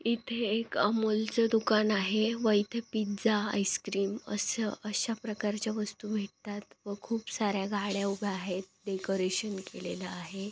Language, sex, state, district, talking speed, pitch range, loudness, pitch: Marathi, female, Maharashtra, Solapur, 130 wpm, 200-220 Hz, -32 LUFS, 210 Hz